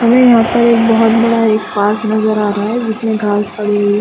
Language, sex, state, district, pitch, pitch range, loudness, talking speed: Hindi, female, Chhattisgarh, Raigarh, 220 Hz, 210-230 Hz, -12 LUFS, 270 wpm